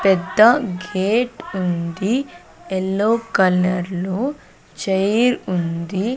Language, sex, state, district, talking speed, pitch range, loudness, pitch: Telugu, female, Andhra Pradesh, Sri Satya Sai, 80 wpm, 185-230 Hz, -19 LUFS, 190 Hz